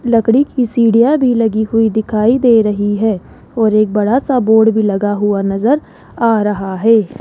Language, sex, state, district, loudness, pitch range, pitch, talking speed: Hindi, female, Rajasthan, Jaipur, -13 LUFS, 210-235 Hz, 220 Hz, 185 wpm